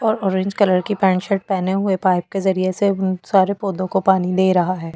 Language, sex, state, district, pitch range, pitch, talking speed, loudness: Hindi, female, Delhi, New Delhi, 185-195 Hz, 190 Hz, 230 wpm, -18 LUFS